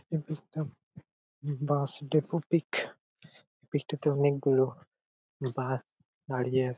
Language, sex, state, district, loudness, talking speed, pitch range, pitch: Bengali, male, West Bengal, Purulia, -31 LUFS, 125 wpm, 130-155 Hz, 145 Hz